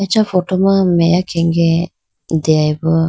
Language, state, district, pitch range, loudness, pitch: Idu Mishmi, Arunachal Pradesh, Lower Dibang Valley, 165-185 Hz, -14 LUFS, 170 Hz